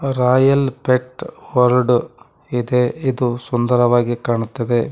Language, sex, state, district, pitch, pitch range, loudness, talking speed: Kannada, male, Karnataka, Koppal, 125 Hz, 120-130 Hz, -17 LUFS, 85 wpm